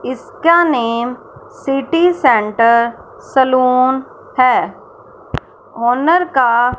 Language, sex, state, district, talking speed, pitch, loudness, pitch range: Hindi, female, Punjab, Fazilka, 80 wpm, 255 Hz, -14 LUFS, 235-305 Hz